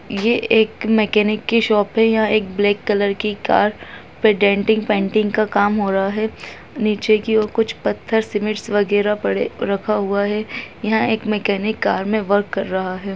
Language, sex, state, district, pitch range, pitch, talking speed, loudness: Hindi, female, Uttarakhand, Tehri Garhwal, 205-220 Hz, 210 Hz, 180 wpm, -18 LUFS